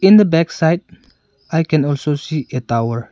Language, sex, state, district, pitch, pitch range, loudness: English, male, Arunachal Pradesh, Longding, 150 Hz, 135-165 Hz, -17 LUFS